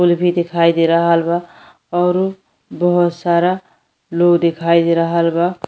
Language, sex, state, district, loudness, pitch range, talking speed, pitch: Bhojpuri, female, Uttar Pradesh, Deoria, -15 LUFS, 170-175 Hz, 160 wpm, 175 Hz